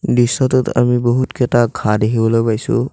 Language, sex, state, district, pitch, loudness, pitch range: Assamese, male, Assam, Kamrup Metropolitan, 120 Hz, -15 LUFS, 115-125 Hz